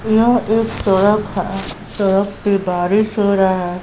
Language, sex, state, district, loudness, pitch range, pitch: Hindi, female, Bihar, West Champaran, -16 LUFS, 190-215 Hz, 200 Hz